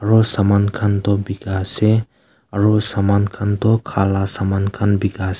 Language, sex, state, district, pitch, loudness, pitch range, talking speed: Nagamese, male, Nagaland, Kohima, 100 Hz, -18 LUFS, 100-105 Hz, 135 wpm